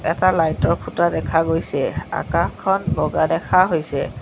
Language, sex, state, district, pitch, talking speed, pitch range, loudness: Assamese, female, Assam, Sonitpur, 170 Hz, 140 wpm, 165-185 Hz, -19 LUFS